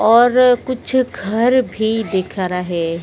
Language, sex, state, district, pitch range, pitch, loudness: Hindi, female, Madhya Pradesh, Dhar, 185-250 Hz, 220 Hz, -16 LUFS